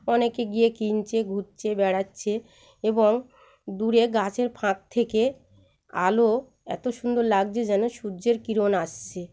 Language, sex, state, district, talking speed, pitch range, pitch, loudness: Bengali, female, West Bengal, Malda, 115 wpm, 195-235 Hz, 220 Hz, -25 LUFS